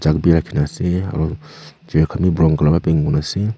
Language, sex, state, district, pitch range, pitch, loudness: Nagamese, male, Nagaland, Kohima, 75-90 Hz, 80 Hz, -17 LUFS